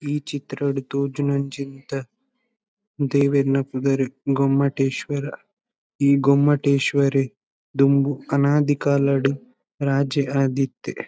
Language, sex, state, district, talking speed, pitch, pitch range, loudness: Tulu, male, Karnataka, Dakshina Kannada, 70 wpm, 140 Hz, 135-145 Hz, -21 LUFS